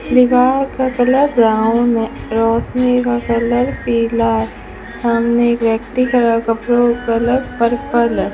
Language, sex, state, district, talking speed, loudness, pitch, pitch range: Hindi, female, Rajasthan, Bikaner, 135 wpm, -15 LUFS, 235 Hz, 230-250 Hz